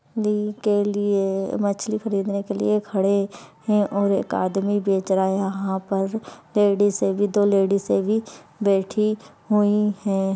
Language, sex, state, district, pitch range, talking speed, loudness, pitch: Hindi, male, Bihar, Madhepura, 195-210 Hz, 145 wpm, -22 LUFS, 200 Hz